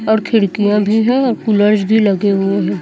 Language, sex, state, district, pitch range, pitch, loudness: Hindi, female, Chhattisgarh, Raipur, 200-220 Hz, 210 Hz, -14 LUFS